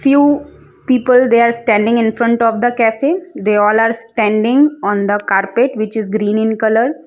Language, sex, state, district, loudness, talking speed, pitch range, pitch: English, female, Gujarat, Valsad, -14 LUFS, 185 wpm, 215-250 Hz, 230 Hz